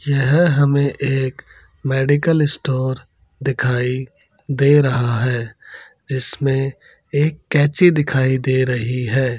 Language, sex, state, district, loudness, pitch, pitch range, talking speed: Hindi, male, Bihar, Gaya, -18 LUFS, 135 Hz, 130-145 Hz, 100 wpm